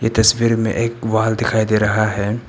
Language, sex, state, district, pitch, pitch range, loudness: Hindi, male, Arunachal Pradesh, Papum Pare, 110 Hz, 110-115 Hz, -17 LUFS